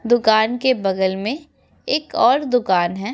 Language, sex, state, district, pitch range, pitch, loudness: Hindi, female, Uttar Pradesh, Etah, 195-255 Hz, 225 Hz, -18 LUFS